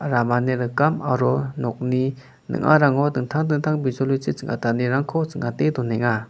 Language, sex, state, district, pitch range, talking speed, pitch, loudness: Garo, male, Meghalaya, West Garo Hills, 120-145 Hz, 105 wpm, 130 Hz, -22 LUFS